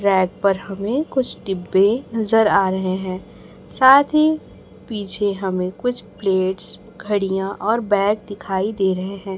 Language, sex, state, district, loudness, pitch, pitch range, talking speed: Hindi, male, Chhattisgarh, Raipur, -19 LUFS, 200 Hz, 190-225 Hz, 140 wpm